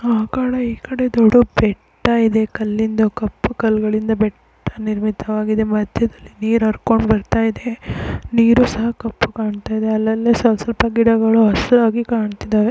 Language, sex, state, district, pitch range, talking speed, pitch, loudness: Kannada, female, Karnataka, Chamarajanagar, 215-235 Hz, 120 wpm, 225 Hz, -17 LUFS